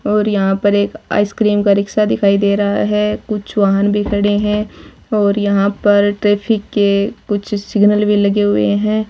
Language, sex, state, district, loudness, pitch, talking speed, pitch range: Marwari, female, Rajasthan, Churu, -15 LUFS, 205 Hz, 180 wpm, 200-210 Hz